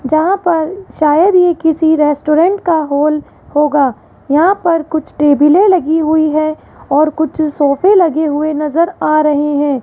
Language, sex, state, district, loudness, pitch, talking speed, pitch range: Hindi, female, Rajasthan, Jaipur, -12 LUFS, 310 Hz, 155 wpm, 295-335 Hz